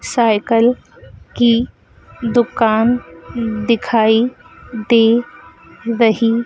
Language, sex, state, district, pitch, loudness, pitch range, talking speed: Hindi, female, Madhya Pradesh, Dhar, 230 Hz, -15 LUFS, 225-240 Hz, 55 wpm